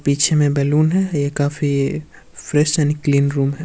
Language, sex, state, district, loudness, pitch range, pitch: Hindi, male, Uttar Pradesh, Varanasi, -17 LUFS, 140-155 Hz, 145 Hz